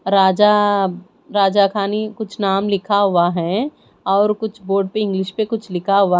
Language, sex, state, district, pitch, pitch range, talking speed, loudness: Hindi, female, Chhattisgarh, Raipur, 200 Hz, 190-210 Hz, 165 wpm, -18 LUFS